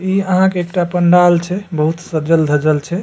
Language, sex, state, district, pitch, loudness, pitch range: Maithili, male, Bihar, Supaul, 175 Hz, -14 LUFS, 160-185 Hz